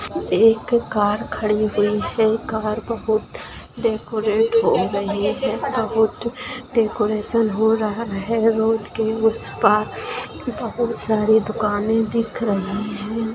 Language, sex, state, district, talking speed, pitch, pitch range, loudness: Hindi, female, Bihar, Lakhisarai, 110 wpm, 220 Hz, 215-230 Hz, -20 LUFS